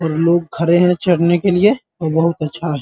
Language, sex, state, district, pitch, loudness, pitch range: Hindi, male, Bihar, Muzaffarpur, 170 Hz, -15 LUFS, 165-180 Hz